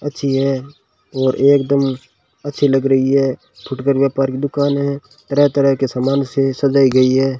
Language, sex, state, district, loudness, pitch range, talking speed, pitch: Hindi, male, Rajasthan, Bikaner, -16 LUFS, 135-140 Hz, 180 wpm, 135 Hz